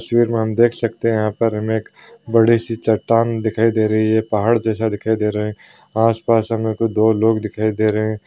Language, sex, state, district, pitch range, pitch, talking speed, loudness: Hindi, male, Bihar, Madhepura, 110-115 Hz, 110 Hz, 230 wpm, -18 LUFS